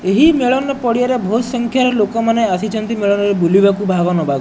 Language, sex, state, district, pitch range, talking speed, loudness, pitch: Odia, male, Odisha, Nuapada, 195-245 Hz, 150 wpm, -15 LUFS, 225 Hz